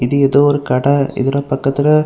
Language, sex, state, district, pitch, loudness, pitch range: Tamil, male, Tamil Nadu, Kanyakumari, 140 Hz, -14 LUFS, 135-145 Hz